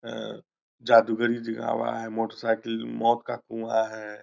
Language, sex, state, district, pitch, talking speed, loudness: Hindi, male, Bihar, Purnia, 115 Hz, 140 wpm, -26 LUFS